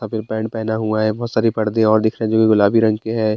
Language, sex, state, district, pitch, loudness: Hindi, male, Bihar, Bhagalpur, 110 Hz, -17 LUFS